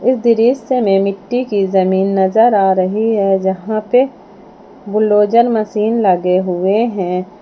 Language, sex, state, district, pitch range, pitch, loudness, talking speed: Hindi, female, Jharkhand, Palamu, 190-230 Hz, 210 Hz, -14 LUFS, 135 wpm